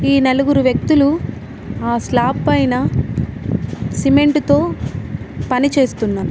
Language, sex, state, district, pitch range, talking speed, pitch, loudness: Telugu, female, Telangana, Mahabubabad, 250-285 Hz, 75 wpm, 275 Hz, -16 LUFS